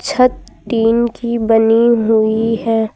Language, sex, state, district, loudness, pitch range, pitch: Hindi, female, Uttar Pradesh, Lucknow, -14 LUFS, 225-235 Hz, 230 Hz